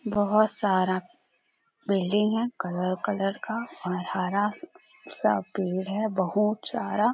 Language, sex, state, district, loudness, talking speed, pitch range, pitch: Hindi, female, Jharkhand, Sahebganj, -27 LUFS, 120 wpm, 185-220 Hz, 205 Hz